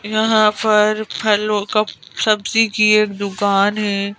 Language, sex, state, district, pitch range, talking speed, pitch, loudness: Hindi, female, Madhya Pradesh, Bhopal, 205-215 Hz, 130 wpm, 215 Hz, -16 LUFS